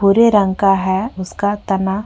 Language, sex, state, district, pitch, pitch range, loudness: Hindi, female, Uttar Pradesh, Jyotiba Phule Nagar, 195 Hz, 190-205 Hz, -16 LUFS